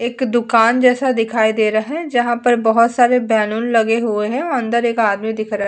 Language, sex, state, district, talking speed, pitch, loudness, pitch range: Hindi, female, Goa, North and South Goa, 220 wpm, 230 Hz, -16 LUFS, 220-245 Hz